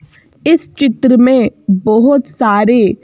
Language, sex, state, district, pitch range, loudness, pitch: Hindi, female, Madhya Pradesh, Bhopal, 205-260 Hz, -11 LUFS, 240 Hz